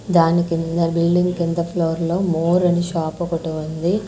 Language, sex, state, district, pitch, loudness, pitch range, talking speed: Telugu, female, Andhra Pradesh, Annamaya, 170 Hz, -19 LUFS, 165-175 Hz, 130 wpm